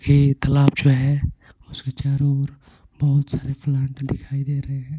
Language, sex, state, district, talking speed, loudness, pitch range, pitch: Hindi, male, Punjab, Pathankot, 170 wpm, -21 LUFS, 135-140 Hz, 140 Hz